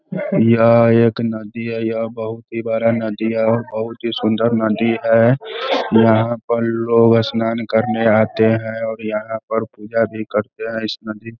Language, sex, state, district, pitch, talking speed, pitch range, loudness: Hindi, male, Bihar, Sitamarhi, 115 Hz, 175 wpm, 110-115 Hz, -17 LUFS